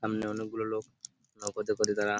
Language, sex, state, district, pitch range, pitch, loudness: Bengali, male, West Bengal, Purulia, 105-110 Hz, 110 Hz, -33 LUFS